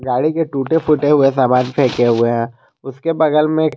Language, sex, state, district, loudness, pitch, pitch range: Hindi, male, Jharkhand, Garhwa, -15 LUFS, 135 Hz, 125-155 Hz